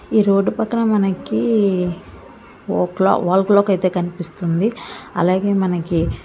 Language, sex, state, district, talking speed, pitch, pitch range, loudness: Telugu, female, Andhra Pradesh, Visakhapatnam, 295 wpm, 190 Hz, 175-205 Hz, -18 LUFS